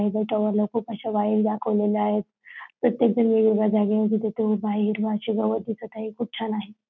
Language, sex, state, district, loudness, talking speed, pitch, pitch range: Marathi, female, Maharashtra, Dhule, -24 LUFS, 190 wpm, 215 Hz, 210-220 Hz